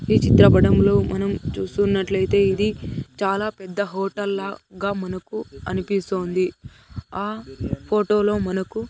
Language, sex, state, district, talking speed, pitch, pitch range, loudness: Telugu, male, Andhra Pradesh, Sri Satya Sai, 100 wpm, 195 Hz, 180-205 Hz, -21 LUFS